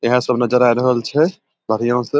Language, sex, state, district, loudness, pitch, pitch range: Maithili, male, Bihar, Samastipur, -17 LUFS, 125 Hz, 120-130 Hz